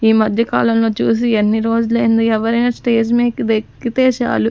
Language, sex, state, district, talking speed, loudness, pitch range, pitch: Telugu, female, Andhra Pradesh, Sri Satya Sai, 145 wpm, -15 LUFS, 220-240 Hz, 230 Hz